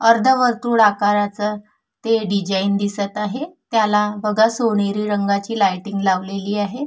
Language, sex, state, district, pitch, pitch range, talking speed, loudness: Marathi, female, Maharashtra, Solapur, 210 Hz, 200-225 Hz, 120 wpm, -19 LUFS